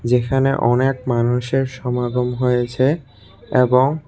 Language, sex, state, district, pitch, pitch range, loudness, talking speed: Bengali, male, Tripura, West Tripura, 125 Hz, 120-135 Hz, -18 LUFS, 90 wpm